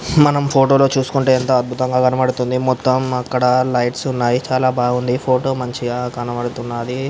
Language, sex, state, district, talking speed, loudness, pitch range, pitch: Telugu, male, Andhra Pradesh, Visakhapatnam, 135 wpm, -17 LUFS, 125-130 Hz, 125 Hz